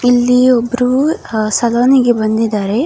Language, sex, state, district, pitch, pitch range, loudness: Kannada, female, Karnataka, Dakshina Kannada, 245 Hz, 225-250 Hz, -12 LUFS